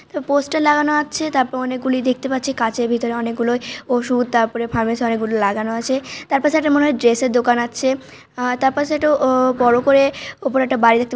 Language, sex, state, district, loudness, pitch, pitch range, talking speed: Bengali, female, West Bengal, Malda, -18 LUFS, 255 Hz, 235-280 Hz, 170 wpm